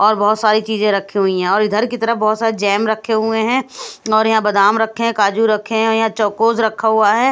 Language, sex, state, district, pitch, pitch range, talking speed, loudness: Hindi, female, Bihar, Katihar, 220 Hz, 210-225 Hz, 245 wpm, -15 LUFS